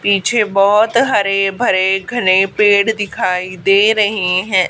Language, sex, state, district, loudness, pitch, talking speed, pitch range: Hindi, female, Haryana, Charkhi Dadri, -13 LUFS, 200 Hz, 125 wpm, 190-215 Hz